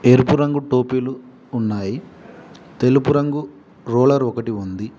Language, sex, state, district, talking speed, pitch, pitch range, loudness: Telugu, male, Telangana, Mahabubabad, 110 wpm, 125 Hz, 115-140 Hz, -19 LUFS